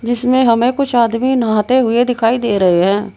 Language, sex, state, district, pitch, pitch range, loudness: Hindi, female, Uttar Pradesh, Saharanpur, 235 Hz, 215-250 Hz, -14 LUFS